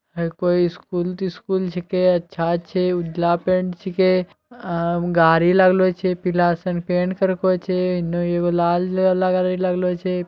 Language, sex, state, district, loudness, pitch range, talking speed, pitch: Maithili, male, Bihar, Bhagalpur, -20 LUFS, 175-185 Hz, 160 wpm, 180 Hz